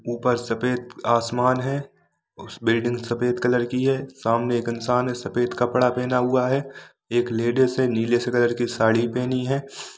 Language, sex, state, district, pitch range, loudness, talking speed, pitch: Hindi, male, Jharkhand, Jamtara, 120-125 Hz, -23 LUFS, 160 wpm, 125 Hz